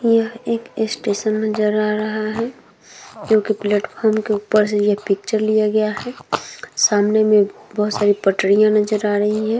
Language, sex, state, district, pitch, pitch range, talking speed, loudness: Hindi, female, Bihar, Vaishali, 215 Hz, 210-215 Hz, 170 wpm, -18 LUFS